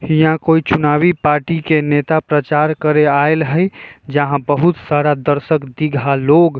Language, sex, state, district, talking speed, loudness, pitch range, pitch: Bajjika, male, Bihar, Vaishali, 155 wpm, -14 LUFS, 145-160 Hz, 150 Hz